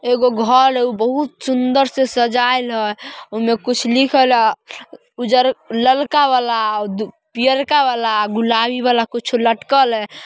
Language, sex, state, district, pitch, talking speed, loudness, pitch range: Magahi, female, Bihar, Samastipur, 245 Hz, 130 wpm, -16 LUFS, 230-260 Hz